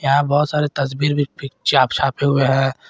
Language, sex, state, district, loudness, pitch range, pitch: Hindi, male, Jharkhand, Garhwa, -18 LUFS, 135-145 Hz, 140 Hz